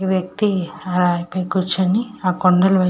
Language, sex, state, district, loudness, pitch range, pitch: Telugu, female, Andhra Pradesh, Srikakulam, -19 LUFS, 180-190 Hz, 185 Hz